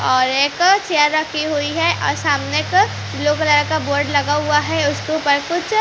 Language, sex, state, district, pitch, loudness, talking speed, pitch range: Hindi, female, Bihar, Patna, 300 Hz, -17 LUFS, 215 wpm, 290-330 Hz